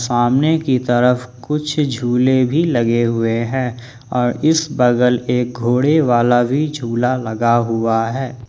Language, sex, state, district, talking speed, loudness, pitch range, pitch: Hindi, male, Jharkhand, Ranchi, 140 wpm, -16 LUFS, 120-130 Hz, 125 Hz